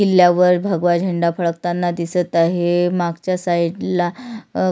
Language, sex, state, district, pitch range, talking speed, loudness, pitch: Marathi, female, Maharashtra, Sindhudurg, 170-180 Hz, 125 wpm, -18 LUFS, 175 Hz